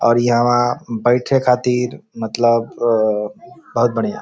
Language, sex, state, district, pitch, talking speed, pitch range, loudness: Bhojpuri, male, Bihar, Saran, 120 Hz, 115 wpm, 115-125 Hz, -17 LUFS